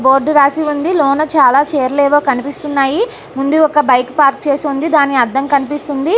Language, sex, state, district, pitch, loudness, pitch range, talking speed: Telugu, female, Andhra Pradesh, Anantapur, 285 Hz, -13 LUFS, 275-300 Hz, 155 wpm